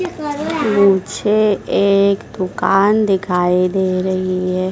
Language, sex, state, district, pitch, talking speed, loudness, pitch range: Hindi, female, Madhya Pradesh, Dhar, 195 Hz, 90 wpm, -16 LUFS, 185-210 Hz